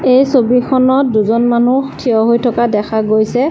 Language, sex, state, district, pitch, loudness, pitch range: Assamese, female, Assam, Sonitpur, 240 Hz, -12 LUFS, 225-260 Hz